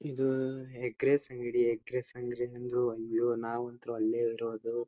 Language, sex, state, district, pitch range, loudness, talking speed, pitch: Kannada, male, Karnataka, Dharwad, 115-125 Hz, -33 LUFS, 125 wpm, 120 Hz